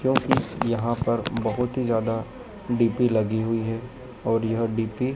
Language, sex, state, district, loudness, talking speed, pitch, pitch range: Hindi, male, Madhya Pradesh, Dhar, -25 LUFS, 165 wpm, 115 Hz, 115-125 Hz